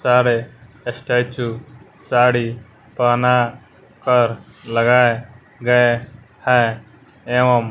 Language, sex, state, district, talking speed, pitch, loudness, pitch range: Hindi, male, Bihar, West Champaran, 70 wpm, 120 Hz, -17 LUFS, 115-125 Hz